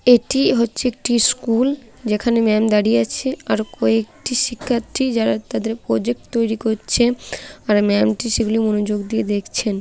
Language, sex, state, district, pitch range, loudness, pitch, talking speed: Bengali, female, West Bengal, Kolkata, 210-240 Hz, -19 LUFS, 225 Hz, 135 wpm